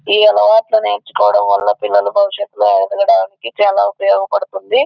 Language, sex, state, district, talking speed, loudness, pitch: Telugu, female, Andhra Pradesh, Anantapur, 125 wpm, -13 LUFS, 160 Hz